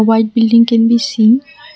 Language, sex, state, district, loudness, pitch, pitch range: English, female, Assam, Kamrup Metropolitan, -11 LUFS, 230 Hz, 225-235 Hz